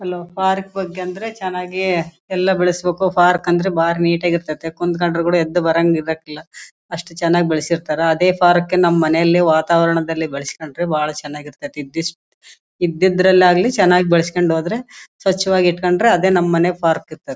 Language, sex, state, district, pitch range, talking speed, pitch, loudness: Kannada, female, Karnataka, Bellary, 165-180 Hz, 150 wpm, 175 Hz, -17 LUFS